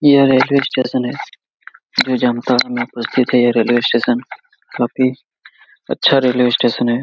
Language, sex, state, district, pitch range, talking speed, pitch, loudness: Hindi, male, Jharkhand, Jamtara, 120-130 Hz, 145 wpm, 125 Hz, -15 LUFS